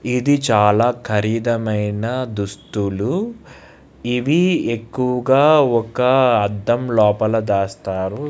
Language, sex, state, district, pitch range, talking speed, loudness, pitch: Telugu, male, Andhra Pradesh, Krishna, 105-125 Hz, 65 wpm, -18 LUFS, 115 Hz